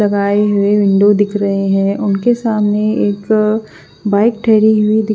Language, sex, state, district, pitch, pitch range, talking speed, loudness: Hindi, female, Punjab, Fazilka, 210 Hz, 200-215 Hz, 150 wpm, -13 LUFS